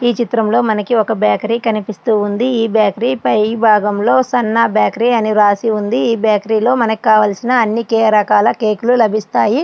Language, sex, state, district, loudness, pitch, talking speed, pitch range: Telugu, female, Andhra Pradesh, Srikakulam, -14 LUFS, 225 Hz, 150 wpm, 215-235 Hz